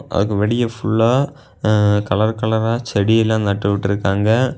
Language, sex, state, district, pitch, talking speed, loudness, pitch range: Tamil, male, Tamil Nadu, Kanyakumari, 110 Hz, 120 wpm, -17 LUFS, 100-115 Hz